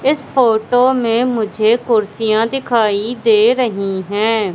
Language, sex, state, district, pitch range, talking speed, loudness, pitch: Hindi, female, Madhya Pradesh, Katni, 215-245 Hz, 120 wpm, -15 LUFS, 225 Hz